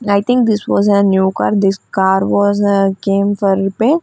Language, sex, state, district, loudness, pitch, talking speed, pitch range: English, female, Punjab, Fazilka, -14 LUFS, 200 Hz, 210 wpm, 195-205 Hz